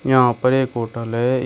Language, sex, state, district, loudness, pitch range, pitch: Hindi, male, Uttar Pradesh, Shamli, -19 LUFS, 115-130 Hz, 125 Hz